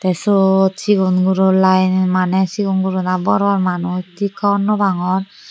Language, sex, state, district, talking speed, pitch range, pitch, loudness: Chakma, female, Tripura, Unakoti, 165 wpm, 185-200 Hz, 190 Hz, -16 LUFS